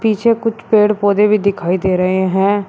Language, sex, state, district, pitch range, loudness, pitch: Hindi, male, Uttar Pradesh, Shamli, 190-215 Hz, -14 LUFS, 205 Hz